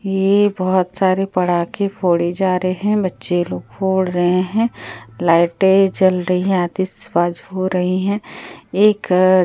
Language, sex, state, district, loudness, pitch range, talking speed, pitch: Hindi, female, Bihar, Katihar, -17 LUFS, 175-195 Hz, 150 wpm, 185 Hz